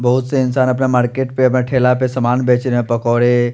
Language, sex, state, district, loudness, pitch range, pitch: Hindi, male, Chandigarh, Chandigarh, -15 LUFS, 120-130 Hz, 125 Hz